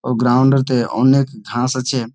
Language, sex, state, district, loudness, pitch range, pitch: Bengali, male, West Bengal, Malda, -16 LUFS, 120-130 Hz, 125 Hz